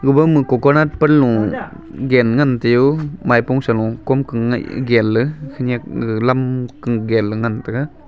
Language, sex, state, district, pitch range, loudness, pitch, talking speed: Wancho, male, Arunachal Pradesh, Longding, 115-140 Hz, -16 LUFS, 125 Hz, 125 wpm